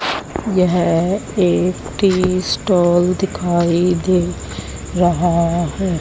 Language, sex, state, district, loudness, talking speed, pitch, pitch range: Hindi, female, Haryana, Rohtak, -17 LUFS, 80 wpm, 175 Hz, 170-185 Hz